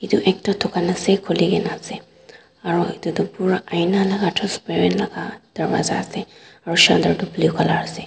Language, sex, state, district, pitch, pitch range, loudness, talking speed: Nagamese, female, Nagaland, Dimapur, 195 Hz, 180-205 Hz, -19 LUFS, 155 wpm